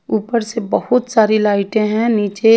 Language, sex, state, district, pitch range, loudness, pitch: Hindi, female, Haryana, Charkhi Dadri, 210-230 Hz, -16 LUFS, 220 Hz